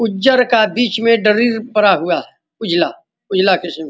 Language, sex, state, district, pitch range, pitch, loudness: Hindi, male, Bihar, Vaishali, 195-235 Hz, 220 Hz, -14 LUFS